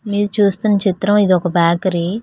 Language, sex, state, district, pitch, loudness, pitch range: Telugu, female, Telangana, Hyderabad, 200 Hz, -15 LUFS, 180-205 Hz